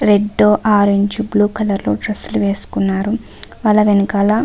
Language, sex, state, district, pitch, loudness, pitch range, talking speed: Telugu, female, Andhra Pradesh, Visakhapatnam, 210 Hz, -15 LUFS, 200-210 Hz, 135 wpm